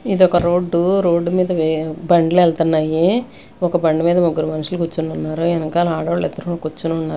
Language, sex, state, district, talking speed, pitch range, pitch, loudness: Telugu, female, Andhra Pradesh, Sri Satya Sai, 160 wpm, 160-175 Hz, 170 Hz, -17 LUFS